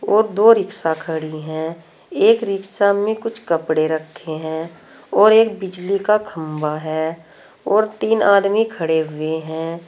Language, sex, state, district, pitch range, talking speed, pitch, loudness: Hindi, female, Uttar Pradesh, Saharanpur, 160-210 Hz, 145 wpm, 170 Hz, -18 LUFS